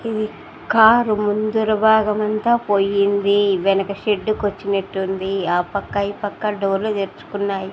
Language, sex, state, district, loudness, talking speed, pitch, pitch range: Telugu, female, Andhra Pradesh, Sri Satya Sai, -19 LUFS, 130 wpm, 205 Hz, 195-215 Hz